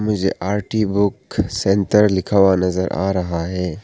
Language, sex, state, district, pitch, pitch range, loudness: Hindi, male, Arunachal Pradesh, Papum Pare, 95 Hz, 95-105 Hz, -18 LUFS